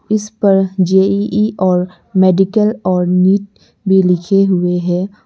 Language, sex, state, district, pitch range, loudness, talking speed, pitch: Hindi, male, Arunachal Pradesh, Lower Dibang Valley, 180-205 Hz, -13 LUFS, 125 wpm, 190 Hz